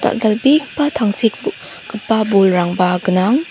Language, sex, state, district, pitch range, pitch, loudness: Garo, female, Meghalaya, South Garo Hills, 190-260 Hz, 215 Hz, -15 LUFS